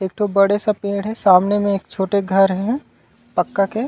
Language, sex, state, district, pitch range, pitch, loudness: Chhattisgarhi, male, Chhattisgarh, Raigarh, 195-210 Hz, 200 Hz, -18 LUFS